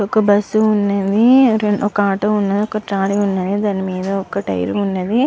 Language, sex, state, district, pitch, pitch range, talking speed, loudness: Telugu, male, Andhra Pradesh, Visakhapatnam, 205 Hz, 195-210 Hz, 160 wpm, -16 LUFS